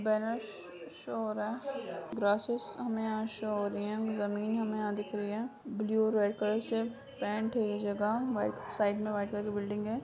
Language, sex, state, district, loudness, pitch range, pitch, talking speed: Hindi, female, Bihar, Purnia, -34 LUFS, 205-225 Hz, 215 Hz, 190 wpm